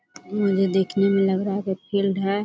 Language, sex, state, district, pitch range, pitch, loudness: Hindi, female, Chhattisgarh, Korba, 190-200 Hz, 195 Hz, -22 LUFS